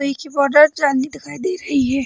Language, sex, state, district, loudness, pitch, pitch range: Hindi, female, Chhattisgarh, Bilaspur, -17 LUFS, 285 Hz, 275-300 Hz